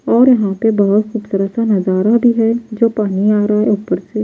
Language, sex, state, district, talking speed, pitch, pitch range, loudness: Hindi, female, Bihar, Patna, 225 wpm, 215 Hz, 205-230 Hz, -14 LUFS